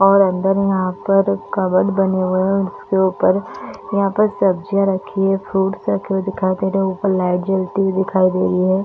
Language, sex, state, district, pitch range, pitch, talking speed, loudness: Hindi, female, Chhattisgarh, Bastar, 185-195 Hz, 190 Hz, 215 wpm, -17 LUFS